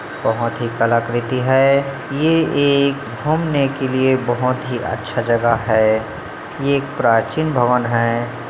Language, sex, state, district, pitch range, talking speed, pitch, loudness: Chhattisgarhi, male, Chhattisgarh, Bilaspur, 115-140 Hz, 135 wpm, 125 Hz, -17 LUFS